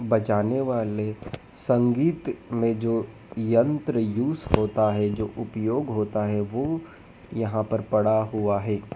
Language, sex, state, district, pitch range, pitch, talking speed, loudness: Hindi, male, Madhya Pradesh, Dhar, 105-120 Hz, 110 Hz, 125 wpm, -25 LUFS